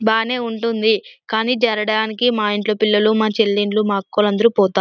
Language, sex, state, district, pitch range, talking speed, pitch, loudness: Telugu, female, Andhra Pradesh, Anantapur, 210-225 Hz, 160 wpm, 215 Hz, -17 LUFS